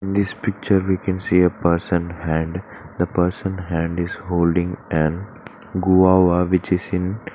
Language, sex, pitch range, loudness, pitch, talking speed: English, male, 85-95 Hz, -20 LUFS, 90 Hz, 165 wpm